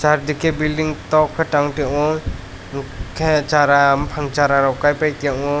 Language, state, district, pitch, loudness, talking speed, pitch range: Kokborok, Tripura, West Tripura, 145 Hz, -17 LUFS, 140 wpm, 140-155 Hz